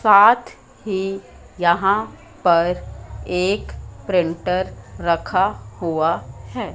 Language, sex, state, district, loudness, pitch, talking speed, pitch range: Hindi, female, Madhya Pradesh, Katni, -20 LUFS, 175 Hz, 80 wpm, 165-190 Hz